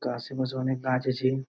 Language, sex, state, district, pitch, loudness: Bengali, male, West Bengal, Purulia, 130 Hz, -29 LUFS